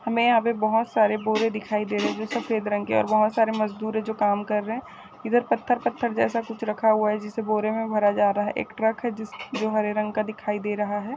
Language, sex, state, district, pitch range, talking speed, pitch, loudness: Hindi, female, Bihar, Purnia, 210-225 Hz, 270 wpm, 215 Hz, -24 LUFS